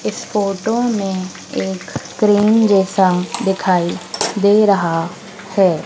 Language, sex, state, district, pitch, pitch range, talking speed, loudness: Hindi, female, Madhya Pradesh, Dhar, 195 Hz, 175-210 Hz, 100 wpm, -16 LUFS